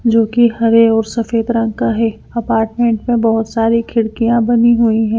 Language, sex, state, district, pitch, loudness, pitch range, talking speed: Hindi, female, Punjab, Fazilka, 230 Hz, -14 LUFS, 225-235 Hz, 185 wpm